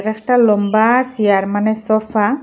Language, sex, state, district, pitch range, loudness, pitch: Bengali, female, Assam, Hailakandi, 210-230 Hz, -15 LUFS, 215 Hz